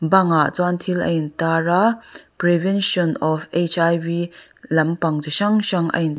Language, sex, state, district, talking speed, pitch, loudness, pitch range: Mizo, female, Mizoram, Aizawl, 145 wpm, 170 Hz, -19 LUFS, 160-185 Hz